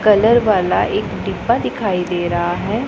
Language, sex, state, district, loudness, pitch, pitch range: Hindi, female, Punjab, Pathankot, -17 LUFS, 205 Hz, 175-220 Hz